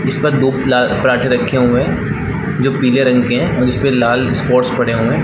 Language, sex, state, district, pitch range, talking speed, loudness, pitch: Hindi, male, Chhattisgarh, Balrampur, 125-135 Hz, 230 wpm, -14 LUFS, 125 Hz